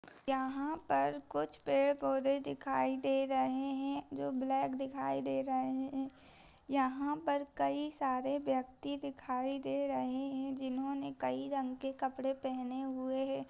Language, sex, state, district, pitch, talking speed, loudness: Hindi, female, Bihar, Begusarai, 265 Hz, 140 wpm, -37 LUFS